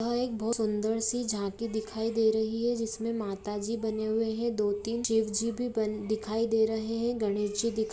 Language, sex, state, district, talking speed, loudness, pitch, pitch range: Hindi, female, Jharkhand, Jamtara, 210 wpm, -30 LUFS, 220 Hz, 215-230 Hz